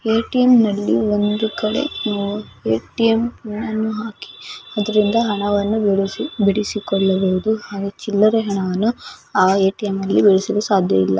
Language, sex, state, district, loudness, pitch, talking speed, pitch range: Kannada, female, Karnataka, Mysore, -18 LUFS, 210 Hz, 75 wpm, 195-220 Hz